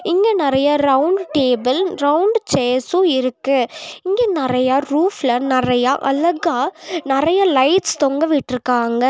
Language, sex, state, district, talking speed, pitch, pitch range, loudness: Tamil, female, Tamil Nadu, Nilgiris, 100 wpm, 285 Hz, 260-350 Hz, -17 LUFS